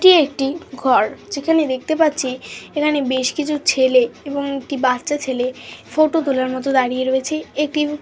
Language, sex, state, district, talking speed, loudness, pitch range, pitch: Bengali, female, West Bengal, Dakshin Dinajpur, 150 wpm, -19 LUFS, 260-300 Hz, 280 Hz